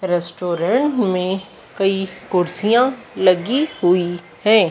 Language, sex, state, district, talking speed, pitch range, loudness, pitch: Hindi, female, Madhya Pradesh, Dhar, 90 wpm, 180-220 Hz, -18 LUFS, 190 Hz